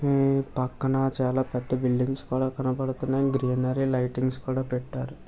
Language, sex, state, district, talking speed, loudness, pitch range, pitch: Telugu, male, Andhra Pradesh, Visakhapatnam, 125 wpm, -27 LUFS, 130-135 Hz, 130 Hz